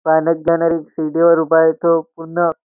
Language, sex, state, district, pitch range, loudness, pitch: Marathi, male, Maharashtra, Nagpur, 160-165 Hz, -16 LUFS, 165 Hz